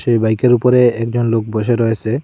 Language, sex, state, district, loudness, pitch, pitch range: Bengali, male, Assam, Hailakandi, -14 LUFS, 115 Hz, 115-120 Hz